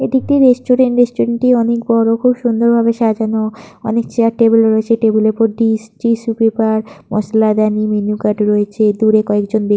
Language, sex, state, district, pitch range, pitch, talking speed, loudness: Bengali, female, West Bengal, Purulia, 215-235 Hz, 225 Hz, 210 wpm, -14 LUFS